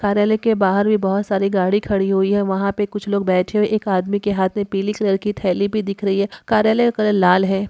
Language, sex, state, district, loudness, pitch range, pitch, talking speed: Hindi, female, Uttar Pradesh, Varanasi, -18 LUFS, 195-210 Hz, 200 Hz, 265 wpm